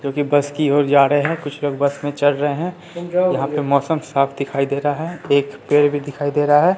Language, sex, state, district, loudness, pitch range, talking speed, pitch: Hindi, male, Bihar, Katihar, -18 LUFS, 140-150 Hz, 265 wpm, 145 Hz